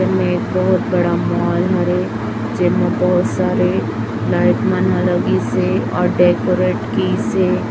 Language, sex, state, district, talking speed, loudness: Hindi, female, Chhattisgarh, Raipur, 140 wpm, -16 LUFS